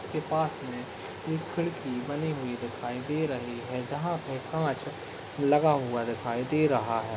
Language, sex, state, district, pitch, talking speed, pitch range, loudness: Hindi, male, Uttarakhand, Uttarkashi, 140 Hz, 165 wpm, 120-155 Hz, -31 LUFS